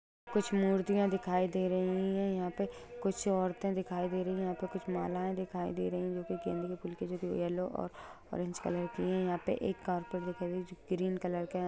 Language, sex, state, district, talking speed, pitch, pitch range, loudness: Hindi, female, Bihar, Saran, 250 wpm, 185 Hz, 180-190 Hz, -35 LUFS